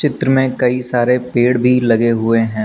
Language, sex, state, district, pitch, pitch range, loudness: Hindi, male, Uttar Pradesh, Lucknow, 125 Hz, 115-125 Hz, -14 LUFS